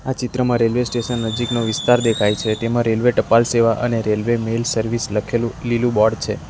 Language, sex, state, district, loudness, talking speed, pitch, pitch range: Gujarati, male, Gujarat, Valsad, -18 LUFS, 175 wpm, 115 Hz, 110-120 Hz